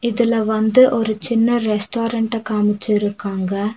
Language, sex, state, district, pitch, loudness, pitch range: Tamil, female, Tamil Nadu, Nilgiris, 220 Hz, -18 LUFS, 210-230 Hz